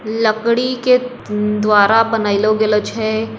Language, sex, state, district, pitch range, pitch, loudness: Angika, female, Bihar, Begusarai, 210-230 Hz, 220 Hz, -15 LUFS